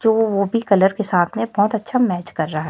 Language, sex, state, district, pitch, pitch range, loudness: Hindi, female, Chhattisgarh, Raipur, 205 Hz, 180-225 Hz, -18 LUFS